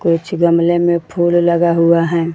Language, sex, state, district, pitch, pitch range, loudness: Hindi, female, Bihar, Jahanabad, 170 Hz, 170-175 Hz, -14 LUFS